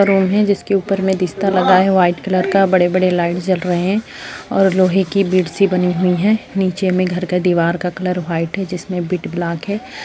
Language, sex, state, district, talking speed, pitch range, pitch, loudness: Hindi, female, Uttarakhand, Uttarkashi, 215 wpm, 180-195 Hz, 185 Hz, -16 LUFS